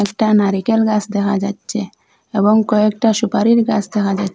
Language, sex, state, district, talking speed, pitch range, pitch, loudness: Bengali, female, Assam, Hailakandi, 150 wpm, 200-220 Hz, 210 Hz, -16 LUFS